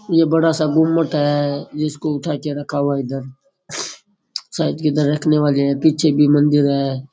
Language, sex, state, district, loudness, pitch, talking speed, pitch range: Rajasthani, male, Rajasthan, Churu, -18 LUFS, 150 Hz, 175 wpm, 145-160 Hz